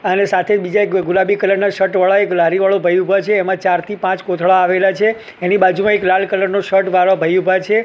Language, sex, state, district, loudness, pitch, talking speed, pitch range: Gujarati, male, Gujarat, Gandhinagar, -14 LUFS, 190 Hz, 245 wpm, 185-200 Hz